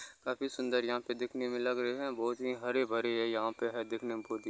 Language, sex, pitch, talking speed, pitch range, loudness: Maithili, male, 120 Hz, 280 wpm, 115-125 Hz, -35 LUFS